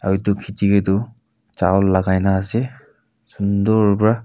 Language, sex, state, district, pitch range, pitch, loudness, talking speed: Nagamese, male, Nagaland, Kohima, 95-110 Hz, 100 Hz, -18 LUFS, 155 wpm